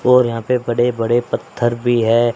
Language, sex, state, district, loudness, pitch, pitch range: Hindi, male, Haryana, Rohtak, -17 LUFS, 120 Hz, 115-125 Hz